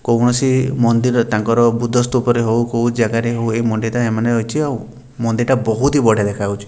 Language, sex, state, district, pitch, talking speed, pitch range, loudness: Odia, male, Odisha, Sambalpur, 120 Hz, 145 wpm, 115-120 Hz, -16 LUFS